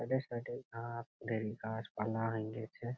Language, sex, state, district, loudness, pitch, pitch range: Bengali, male, West Bengal, Malda, -40 LUFS, 115 Hz, 110-120 Hz